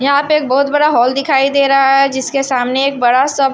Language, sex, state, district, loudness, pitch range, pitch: Hindi, female, Bihar, Patna, -13 LUFS, 265-280 Hz, 275 Hz